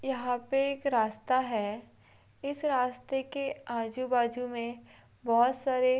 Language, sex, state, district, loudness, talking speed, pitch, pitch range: Hindi, female, Bihar, Purnia, -31 LUFS, 130 wpm, 250 Hz, 235-270 Hz